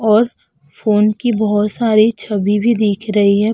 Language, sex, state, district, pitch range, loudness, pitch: Hindi, female, Uttar Pradesh, Hamirpur, 205-220 Hz, -15 LUFS, 215 Hz